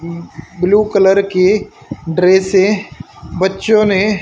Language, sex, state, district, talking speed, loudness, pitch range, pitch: Hindi, female, Haryana, Charkhi Dadri, 85 wpm, -13 LUFS, 180-205 Hz, 190 Hz